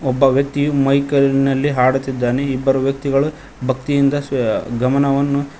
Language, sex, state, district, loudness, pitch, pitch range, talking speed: Kannada, male, Karnataka, Koppal, -17 LUFS, 135 Hz, 135-140 Hz, 130 wpm